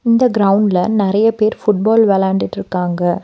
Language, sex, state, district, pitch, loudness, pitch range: Tamil, female, Tamil Nadu, Nilgiris, 205 Hz, -14 LUFS, 190-220 Hz